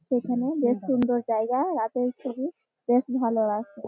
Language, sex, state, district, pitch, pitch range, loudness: Bengali, female, West Bengal, Malda, 245 Hz, 240-260 Hz, -26 LUFS